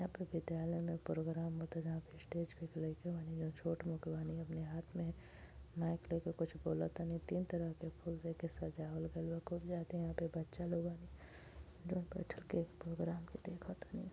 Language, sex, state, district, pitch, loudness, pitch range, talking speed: Bhojpuri, female, Uttar Pradesh, Gorakhpur, 165 Hz, -44 LUFS, 165-170 Hz, 190 wpm